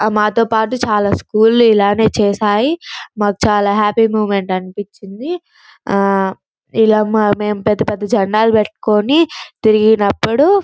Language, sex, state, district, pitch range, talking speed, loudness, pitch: Telugu, female, Andhra Pradesh, Guntur, 205-225 Hz, 120 wpm, -14 LUFS, 215 Hz